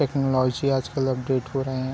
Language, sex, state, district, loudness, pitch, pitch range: Hindi, male, Chhattisgarh, Bilaspur, -24 LUFS, 130 Hz, 130-135 Hz